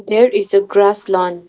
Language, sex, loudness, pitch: English, female, -14 LUFS, 200 Hz